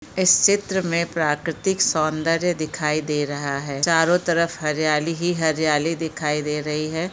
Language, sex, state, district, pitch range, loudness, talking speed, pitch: Hindi, female, Chhattisgarh, Bilaspur, 150-170 Hz, -21 LUFS, 150 wpm, 160 Hz